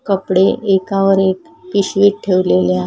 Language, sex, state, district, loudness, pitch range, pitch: Marathi, female, Maharashtra, Solapur, -14 LUFS, 185-200 Hz, 195 Hz